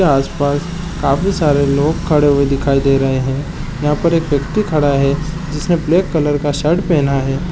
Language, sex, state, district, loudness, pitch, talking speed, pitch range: Chhattisgarhi, male, Chhattisgarh, Jashpur, -15 LUFS, 150 Hz, 190 wpm, 140-165 Hz